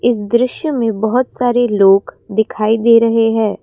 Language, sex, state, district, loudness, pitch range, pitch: Hindi, female, Assam, Kamrup Metropolitan, -14 LUFS, 220-245 Hz, 230 Hz